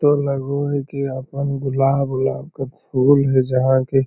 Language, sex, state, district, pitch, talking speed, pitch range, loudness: Magahi, male, Bihar, Lakhisarai, 135 Hz, 175 wpm, 130-140 Hz, -19 LUFS